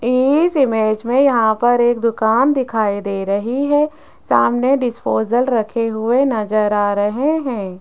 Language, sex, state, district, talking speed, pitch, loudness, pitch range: Hindi, female, Rajasthan, Jaipur, 145 wpm, 235 Hz, -16 LUFS, 215-265 Hz